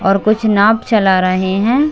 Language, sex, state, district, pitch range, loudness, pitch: Hindi, female, Chhattisgarh, Bilaspur, 190-220 Hz, -13 LUFS, 210 Hz